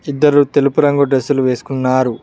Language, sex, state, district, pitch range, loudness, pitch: Telugu, male, Telangana, Mahabubabad, 130-145 Hz, -14 LUFS, 140 Hz